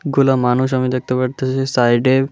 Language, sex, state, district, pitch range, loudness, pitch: Bengali, male, Tripura, West Tripura, 125-135 Hz, -16 LUFS, 130 Hz